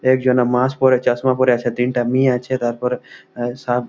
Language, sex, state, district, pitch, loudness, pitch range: Bengali, male, West Bengal, Malda, 125 Hz, -18 LUFS, 120-130 Hz